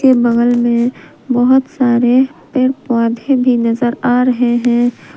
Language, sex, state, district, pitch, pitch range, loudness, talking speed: Hindi, female, Jharkhand, Palamu, 245 Hz, 240-260 Hz, -13 LUFS, 125 wpm